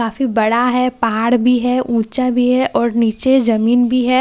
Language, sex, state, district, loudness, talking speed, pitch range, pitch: Hindi, female, Bihar, Katihar, -15 LUFS, 215 wpm, 230-255 Hz, 245 Hz